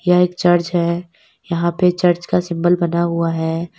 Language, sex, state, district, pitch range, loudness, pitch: Hindi, female, Uttar Pradesh, Lalitpur, 170-180 Hz, -17 LUFS, 175 Hz